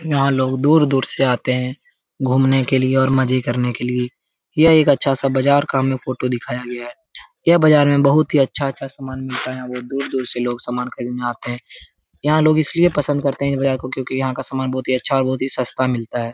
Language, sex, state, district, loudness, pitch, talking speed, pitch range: Hindi, male, Bihar, Saran, -18 LUFS, 130 Hz, 215 wpm, 125-140 Hz